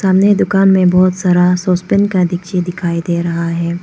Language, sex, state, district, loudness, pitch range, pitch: Hindi, female, Arunachal Pradesh, Papum Pare, -13 LUFS, 175-190 Hz, 180 Hz